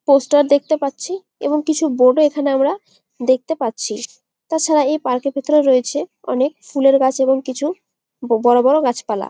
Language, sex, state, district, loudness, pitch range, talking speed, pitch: Bengali, female, West Bengal, Jalpaiguri, -17 LUFS, 250-300 Hz, 170 wpm, 275 Hz